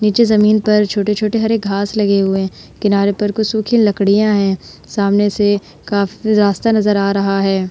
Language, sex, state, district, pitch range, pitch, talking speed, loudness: Hindi, female, Uttar Pradesh, Hamirpur, 200-215 Hz, 205 Hz, 180 wpm, -15 LUFS